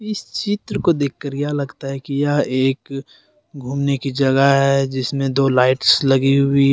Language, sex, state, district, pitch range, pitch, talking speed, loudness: Hindi, male, Jharkhand, Deoghar, 135-145 Hz, 140 Hz, 180 wpm, -18 LUFS